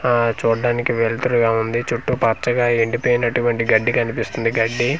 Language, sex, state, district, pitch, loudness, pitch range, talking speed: Telugu, male, Andhra Pradesh, Manyam, 120 Hz, -19 LUFS, 115-120 Hz, 130 wpm